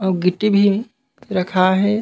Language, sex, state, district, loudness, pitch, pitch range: Chhattisgarhi, male, Chhattisgarh, Raigarh, -17 LUFS, 200 Hz, 185-215 Hz